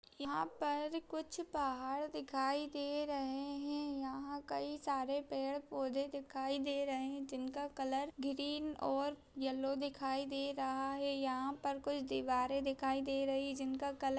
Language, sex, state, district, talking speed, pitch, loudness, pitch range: Hindi, female, Chhattisgarh, Kabirdham, 150 wpm, 275 Hz, -40 LUFS, 270-285 Hz